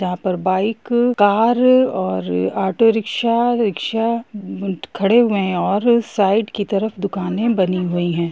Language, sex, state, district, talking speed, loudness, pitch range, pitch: Hindi, female, Bihar, Gopalganj, 135 wpm, -18 LUFS, 185-230 Hz, 205 Hz